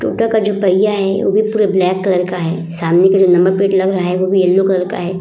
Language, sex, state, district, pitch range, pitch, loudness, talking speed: Hindi, female, Bihar, Vaishali, 180-195 Hz, 190 Hz, -14 LUFS, 300 wpm